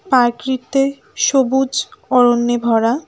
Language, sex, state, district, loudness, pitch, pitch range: Bengali, female, West Bengal, Alipurduar, -16 LUFS, 255 Hz, 240-270 Hz